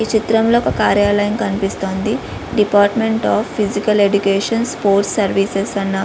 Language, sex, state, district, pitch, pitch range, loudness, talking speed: Telugu, female, Andhra Pradesh, Visakhapatnam, 205 Hz, 200-220 Hz, -16 LUFS, 130 wpm